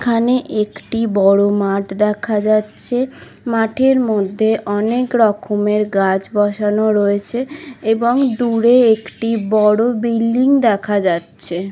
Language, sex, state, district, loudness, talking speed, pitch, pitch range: Bengali, female, West Bengal, Kolkata, -16 LUFS, 90 wpm, 220 Hz, 205-235 Hz